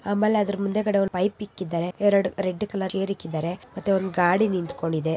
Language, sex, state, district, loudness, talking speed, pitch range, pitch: Kannada, female, Karnataka, Raichur, -25 LUFS, 115 wpm, 180-205 Hz, 195 Hz